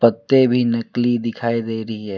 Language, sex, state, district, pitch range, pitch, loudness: Hindi, male, West Bengal, Alipurduar, 115-120 Hz, 115 Hz, -19 LUFS